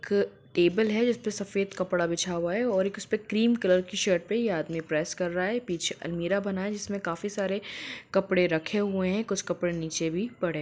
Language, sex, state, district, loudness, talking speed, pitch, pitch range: Hindi, female, Bihar, Gopalganj, -28 LUFS, 225 wpm, 190 Hz, 175-205 Hz